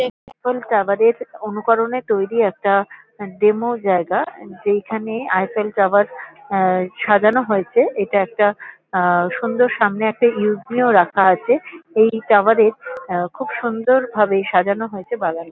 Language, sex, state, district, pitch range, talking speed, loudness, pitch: Bengali, female, West Bengal, Kolkata, 195-235 Hz, 125 wpm, -18 LUFS, 210 Hz